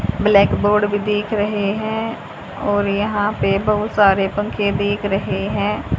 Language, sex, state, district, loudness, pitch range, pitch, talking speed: Hindi, female, Haryana, Rohtak, -18 LUFS, 200-210 Hz, 205 Hz, 140 wpm